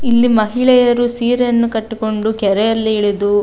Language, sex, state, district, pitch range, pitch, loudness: Kannada, female, Karnataka, Dakshina Kannada, 215-240 Hz, 225 Hz, -14 LUFS